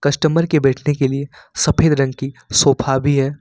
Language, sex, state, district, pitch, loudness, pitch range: Hindi, male, Jharkhand, Ranchi, 140 Hz, -16 LUFS, 135-145 Hz